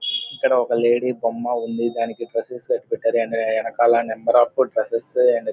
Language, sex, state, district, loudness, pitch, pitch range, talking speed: Telugu, male, Andhra Pradesh, Guntur, -21 LUFS, 120 Hz, 115-130 Hz, 175 wpm